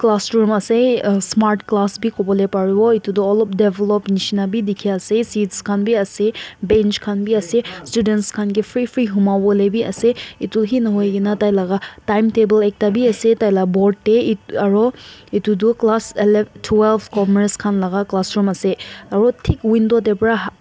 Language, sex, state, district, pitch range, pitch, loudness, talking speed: Nagamese, female, Nagaland, Kohima, 200-225 Hz, 210 Hz, -17 LUFS, 180 wpm